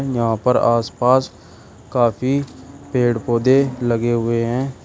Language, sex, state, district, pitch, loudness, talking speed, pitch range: Hindi, male, Uttar Pradesh, Shamli, 120 Hz, -18 LUFS, 110 wpm, 115-130 Hz